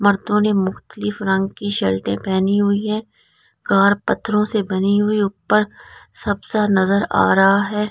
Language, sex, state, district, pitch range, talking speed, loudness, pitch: Hindi, female, Delhi, New Delhi, 195-210 Hz, 120 wpm, -18 LUFS, 205 Hz